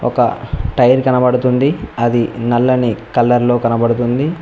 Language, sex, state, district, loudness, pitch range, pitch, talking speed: Telugu, male, Telangana, Mahabubabad, -14 LUFS, 120-125 Hz, 120 Hz, 95 wpm